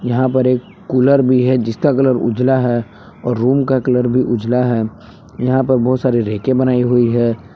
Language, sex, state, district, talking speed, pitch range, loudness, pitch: Hindi, male, Jharkhand, Palamu, 200 wpm, 120-130 Hz, -15 LUFS, 125 Hz